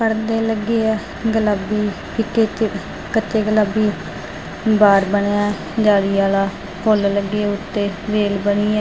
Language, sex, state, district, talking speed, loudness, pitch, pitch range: Punjabi, female, Punjab, Fazilka, 125 wpm, -18 LUFS, 210 Hz, 200-220 Hz